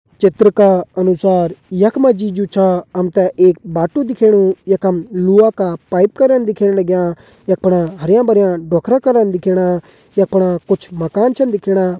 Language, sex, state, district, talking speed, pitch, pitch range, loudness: Hindi, male, Uttarakhand, Uttarkashi, 165 wpm, 190 Hz, 180-205 Hz, -14 LUFS